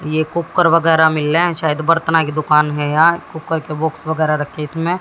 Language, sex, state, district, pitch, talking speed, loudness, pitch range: Hindi, female, Haryana, Jhajjar, 160 Hz, 225 wpm, -16 LUFS, 155-165 Hz